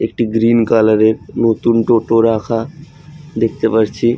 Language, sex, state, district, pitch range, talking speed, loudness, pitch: Bengali, male, West Bengal, Jhargram, 110-120 Hz, 130 wpm, -14 LUFS, 115 Hz